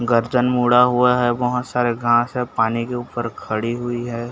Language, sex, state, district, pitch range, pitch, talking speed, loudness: Hindi, male, Chhattisgarh, Bastar, 120-125 Hz, 120 Hz, 195 wpm, -19 LUFS